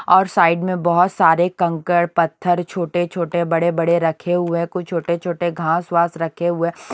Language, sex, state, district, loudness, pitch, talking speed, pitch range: Hindi, female, Punjab, Kapurthala, -18 LUFS, 170 Hz, 200 wpm, 170-175 Hz